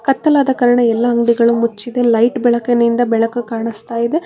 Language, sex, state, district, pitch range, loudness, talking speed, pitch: Kannada, female, Karnataka, Bangalore, 230-245 Hz, -14 LUFS, 140 wpm, 235 Hz